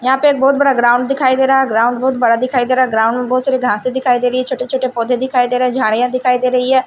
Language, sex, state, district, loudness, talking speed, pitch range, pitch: Hindi, female, Punjab, Kapurthala, -14 LUFS, 325 wpm, 245-260 Hz, 255 Hz